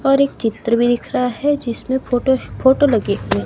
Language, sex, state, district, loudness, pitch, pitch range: Hindi, female, Himachal Pradesh, Shimla, -17 LUFS, 250 Hz, 235-265 Hz